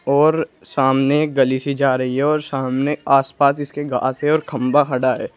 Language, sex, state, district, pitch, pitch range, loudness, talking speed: Hindi, male, Uttar Pradesh, Saharanpur, 140 Hz, 130-145 Hz, -18 LUFS, 200 wpm